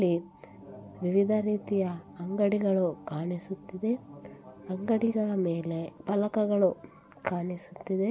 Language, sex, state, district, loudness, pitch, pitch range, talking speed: Kannada, female, Karnataka, Bellary, -30 LUFS, 190 Hz, 175-205 Hz, 75 wpm